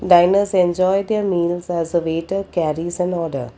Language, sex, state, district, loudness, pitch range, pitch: English, female, Karnataka, Bangalore, -19 LUFS, 170-185 Hz, 175 Hz